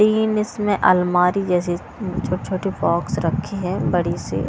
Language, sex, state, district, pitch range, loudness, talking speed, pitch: Hindi, female, Punjab, Kapurthala, 175-205 Hz, -20 LUFS, 160 wpm, 185 Hz